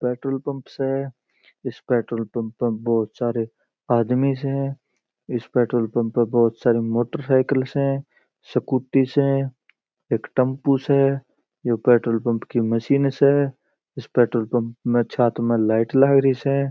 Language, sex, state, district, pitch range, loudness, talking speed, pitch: Marwari, male, Rajasthan, Churu, 120-135 Hz, -21 LUFS, 135 wpm, 125 Hz